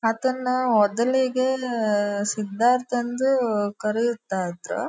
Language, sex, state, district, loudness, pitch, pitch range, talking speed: Kannada, female, Karnataka, Dharwad, -23 LUFS, 235 Hz, 210-255 Hz, 75 wpm